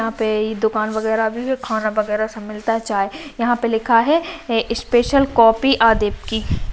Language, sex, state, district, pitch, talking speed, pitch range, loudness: Hindi, female, Rajasthan, Nagaur, 225 Hz, 170 wpm, 215-240 Hz, -18 LUFS